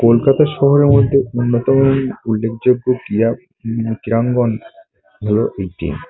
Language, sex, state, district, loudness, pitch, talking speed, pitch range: Bengali, male, West Bengal, Kolkata, -15 LUFS, 120 Hz, 60 wpm, 115-135 Hz